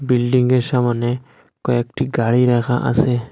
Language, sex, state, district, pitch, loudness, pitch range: Bengali, male, Assam, Hailakandi, 125 Hz, -18 LUFS, 120-125 Hz